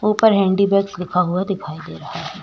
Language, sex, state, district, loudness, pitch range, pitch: Hindi, female, Uttar Pradesh, Budaun, -18 LUFS, 180-200 Hz, 195 Hz